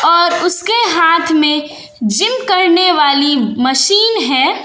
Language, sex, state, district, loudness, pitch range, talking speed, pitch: Hindi, female, Bihar, West Champaran, -12 LUFS, 290-395 Hz, 115 wpm, 340 Hz